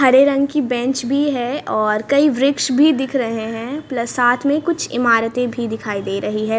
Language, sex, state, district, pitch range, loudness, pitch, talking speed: Hindi, female, Haryana, Rohtak, 230-280 Hz, -18 LUFS, 250 Hz, 210 wpm